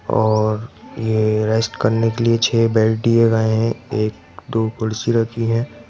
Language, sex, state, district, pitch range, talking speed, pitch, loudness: Hindi, male, Madhya Pradesh, Bhopal, 110-115 Hz, 165 wpm, 115 Hz, -18 LUFS